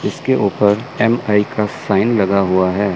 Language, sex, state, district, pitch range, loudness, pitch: Hindi, male, Chandigarh, Chandigarh, 100-110 Hz, -16 LUFS, 105 Hz